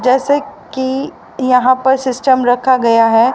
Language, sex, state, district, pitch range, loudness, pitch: Hindi, female, Haryana, Rohtak, 250-265 Hz, -13 LUFS, 260 Hz